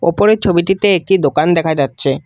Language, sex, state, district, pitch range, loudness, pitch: Bengali, male, Assam, Kamrup Metropolitan, 145-195 Hz, -13 LUFS, 170 Hz